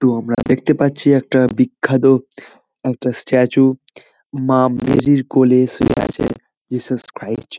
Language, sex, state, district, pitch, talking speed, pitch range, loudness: Bengali, male, West Bengal, Kolkata, 130 Hz, 125 wpm, 125-135 Hz, -16 LUFS